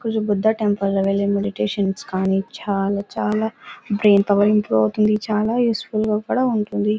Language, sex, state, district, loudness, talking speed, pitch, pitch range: Telugu, female, Karnataka, Bellary, -20 LUFS, 170 wpm, 210 Hz, 195-215 Hz